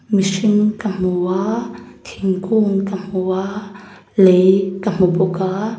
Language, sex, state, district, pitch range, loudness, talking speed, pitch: Mizo, female, Mizoram, Aizawl, 185-210 Hz, -17 LUFS, 135 wpm, 195 Hz